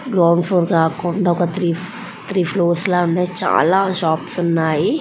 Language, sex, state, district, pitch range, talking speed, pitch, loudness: Telugu, female, Andhra Pradesh, Anantapur, 170-185 Hz, 110 wpm, 175 Hz, -17 LUFS